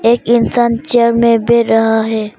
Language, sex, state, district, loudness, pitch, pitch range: Hindi, female, Arunachal Pradesh, Papum Pare, -12 LUFS, 235 Hz, 225-235 Hz